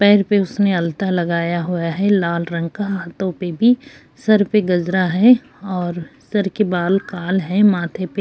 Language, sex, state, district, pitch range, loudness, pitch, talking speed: Hindi, female, Uttar Pradesh, Jyotiba Phule Nagar, 175-205 Hz, -18 LUFS, 190 Hz, 190 wpm